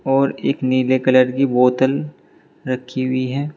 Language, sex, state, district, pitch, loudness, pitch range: Hindi, male, Uttar Pradesh, Saharanpur, 130 Hz, -18 LUFS, 130-135 Hz